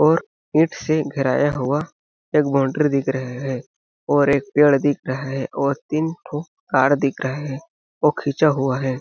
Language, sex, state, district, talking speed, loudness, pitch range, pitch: Hindi, male, Chhattisgarh, Balrampur, 185 wpm, -20 LUFS, 135-150 Hz, 140 Hz